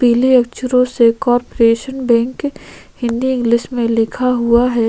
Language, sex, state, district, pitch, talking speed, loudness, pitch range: Hindi, female, Maharashtra, Chandrapur, 240 Hz, 135 wpm, -15 LUFS, 235-255 Hz